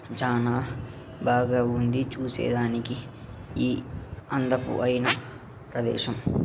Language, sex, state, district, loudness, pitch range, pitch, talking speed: Telugu, male, Telangana, Karimnagar, -27 LUFS, 120-130 Hz, 125 Hz, 75 wpm